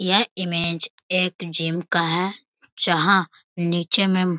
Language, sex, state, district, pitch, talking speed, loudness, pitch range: Hindi, male, Bihar, Bhagalpur, 180 Hz, 135 wpm, -21 LUFS, 170-195 Hz